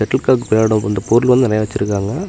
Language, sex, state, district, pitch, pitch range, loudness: Tamil, male, Tamil Nadu, Namakkal, 110 Hz, 105-125 Hz, -15 LUFS